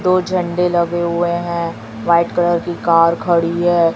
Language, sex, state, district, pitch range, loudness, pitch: Hindi, female, Chhattisgarh, Raipur, 170-175 Hz, -16 LUFS, 170 Hz